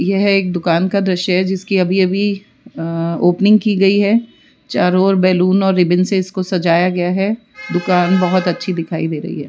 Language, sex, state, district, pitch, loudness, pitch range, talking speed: Hindi, female, Rajasthan, Jaipur, 185 Hz, -15 LUFS, 175-195 Hz, 195 wpm